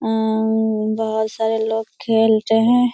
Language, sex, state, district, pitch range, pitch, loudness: Hindi, female, Bihar, Jamui, 220-225 Hz, 220 Hz, -18 LUFS